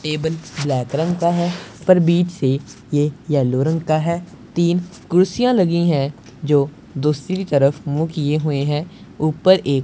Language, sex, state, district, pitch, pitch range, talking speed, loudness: Hindi, male, Punjab, Pathankot, 155 Hz, 140-170 Hz, 170 wpm, -19 LUFS